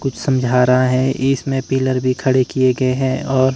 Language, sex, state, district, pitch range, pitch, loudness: Hindi, male, Himachal Pradesh, Shimla, 130-135 Hz, 130 Hz, -16 LUFS